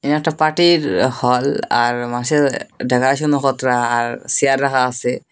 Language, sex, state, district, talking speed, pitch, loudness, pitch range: Bengali, male, Assam, Hailakandi, 125 wpm, 130 Hz, -17 LUFS, 125-145 Hz